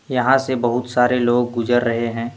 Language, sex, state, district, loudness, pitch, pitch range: Hindi, male, Jharkhand, Deoghar, -18 LUFS, 120 Hz, 120-125 Hz